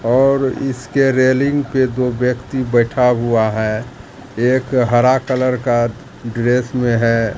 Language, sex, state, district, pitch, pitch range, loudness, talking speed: Hindi, male, Bihar, Katihar, 125 Hz, 120-130 Hz, -16 LUFS, 130 wpm